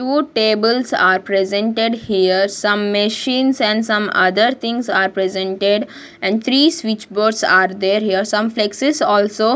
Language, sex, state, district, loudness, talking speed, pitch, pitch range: English, female, Punjab, Kapurthala, -16 LUFS, 150 wpm, 210 Hz, 195-230 Hz